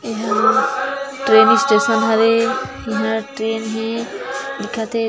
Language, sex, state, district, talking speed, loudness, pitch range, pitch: Chhattisgarhi, female, Chhattisgarh, Jashpur, 105 wpm, -17 LUFS, 220-265 Hz, 225 Hz